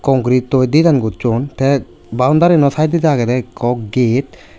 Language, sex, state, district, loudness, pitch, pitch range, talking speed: Chakma, male, Tripura, West Tripura, -14 LUFS, 130 Hz, 120-145 Hz, 130 wpm